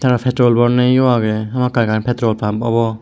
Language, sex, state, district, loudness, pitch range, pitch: Chakma, male, Tripura, West Tripura, -15 LUFS, 110-125 Hz, 120 Hz